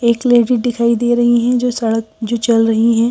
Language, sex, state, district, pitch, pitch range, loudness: Hindi, female, Madhya Pradesh, Bhopal, 235 Hz, 230-240 Hz, -14 LUFS